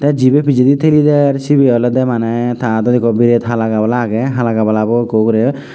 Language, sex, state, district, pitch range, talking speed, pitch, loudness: Chakma, male, Tripura, West Tripura, 115-135 Hz, 200 wpm, 120 Hz, -13 LUFS